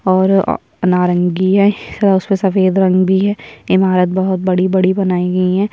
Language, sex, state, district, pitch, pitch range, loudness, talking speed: Hindi, female, Chhattisgarh, Sukma, 190 Hz, 185-195 Hz, -14 LUFS, 165 wpm